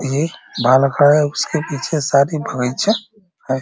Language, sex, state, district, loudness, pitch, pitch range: Hindi, male, Uttar Pradesh, Ghazipur, -17 LUFS, 145 Hz, 135-160 Hz